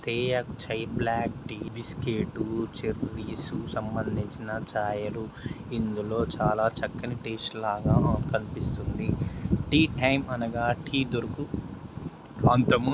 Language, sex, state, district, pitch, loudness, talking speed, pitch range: Telugu, male, Andhra Pradesh, Srikakulam, 115 Hz, -29 LUFS, 95 wpm, 110-125 Hz